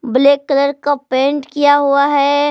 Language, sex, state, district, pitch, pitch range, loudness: Hindi, female, Jharkhand, Palamu, 280 Hz, 275-290 Hz, -14 LUFS